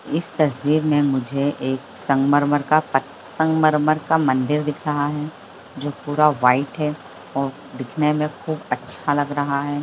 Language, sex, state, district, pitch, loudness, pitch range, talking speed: Hindi, female, Bihar, Bhagalpur, 145 Hz, -21 LUFS, 140-150 Hz, 160 wpm